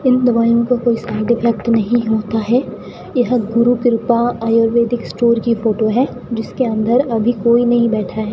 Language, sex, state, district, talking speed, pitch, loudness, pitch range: Hindi, female, Rajasthan, Bikaner, 175 wpm, 235 Hz, -15 LUFS, 225-240 Hz